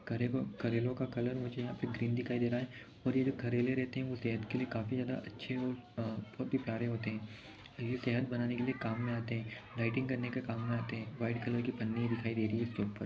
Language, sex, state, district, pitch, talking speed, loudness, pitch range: Hindi, male, Chhattisgarh, Sarguja, 120 Hz, 260 wpm, -37 LUFS, 115-125 Hz